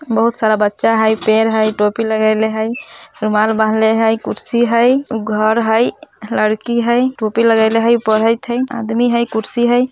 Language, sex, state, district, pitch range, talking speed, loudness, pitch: Bajjika, female, Bihar, Vaishali, 220-235 Hz, 170 wpm, -13 LUFS, 225 Hz